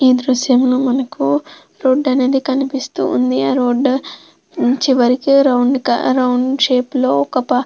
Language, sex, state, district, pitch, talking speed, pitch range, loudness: Telugu, female, Andhra Pradesh, Krishna, 255 Hz, 125 wpm, 250-265 Hz, -15 LUFS